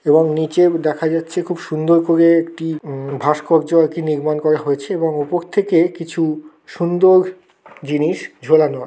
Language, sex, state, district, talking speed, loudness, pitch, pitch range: Bengali, male, West Bengal, Kolkata, 150 wpm, -17 LUFS, 160 Hz, 155-170 Hz